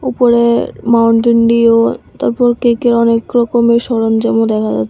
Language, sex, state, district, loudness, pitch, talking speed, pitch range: Bengali, female, Tripura, West Tripura, -12 LUFS, 235 Hz, 110 wpm, 230-235 Hz